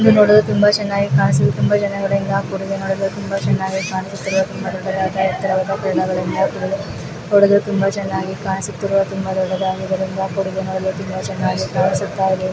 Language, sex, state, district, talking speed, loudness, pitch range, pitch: Kannada, female, Karnataka, Chamarajanagar, 110 wpm, -18 LUFS, 190-195 Hz, 190 Hz